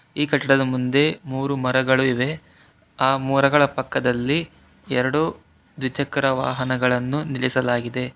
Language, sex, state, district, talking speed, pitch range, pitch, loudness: Kannada, male, Karnataka, Bangalore, 95 wpm, 125-140 Hz, 130 Hz, -21 LUFS